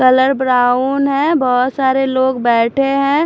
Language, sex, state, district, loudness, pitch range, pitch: Hindi, female, Maharashtra, Washim, -14 LUFS, 255-275 Hz, 260 Hz